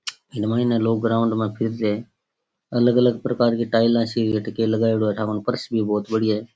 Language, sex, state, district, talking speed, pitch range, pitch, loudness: Rajasthani, male, Rajasthan, Churu, 240 wpm, 110-115 Hz, 115 Hz, -21 LUFS